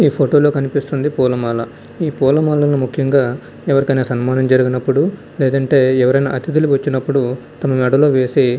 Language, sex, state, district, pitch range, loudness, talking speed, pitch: Telugu, male, Andhra Pradesh, Visakhapatnam, 130-145 Hz, -15 LUFS, 125 wpm, 135 Hz